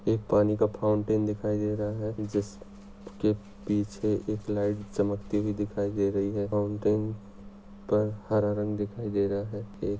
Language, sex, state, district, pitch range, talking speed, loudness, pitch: Hindi, male, Maharashtra, Nagpur, 100-105 Hz, 160 wpm, -29 LUFS, 105 Hz